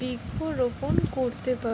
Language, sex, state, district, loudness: Bengali, female, West Bengal, Jalpaiguri, -28 LUFS